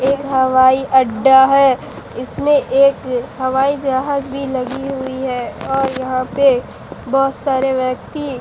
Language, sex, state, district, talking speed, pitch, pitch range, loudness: Hindi, female, Bihar, Katihar, 130 wpm, 265 Hz, 260-275 Hz, -16 LUFS